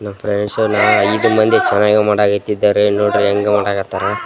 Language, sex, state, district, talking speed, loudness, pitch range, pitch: Kannada, male, Karnataka, Raichur, 170 wpm, -14 LUFS, 100-105 Hz, 105 Hz